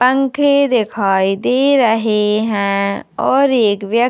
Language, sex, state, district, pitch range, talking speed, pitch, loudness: Hindi, female, Chhattisgarh, Jashpur, 205-260 Hz, 130 wpm, 225 Hz, -14 LUFS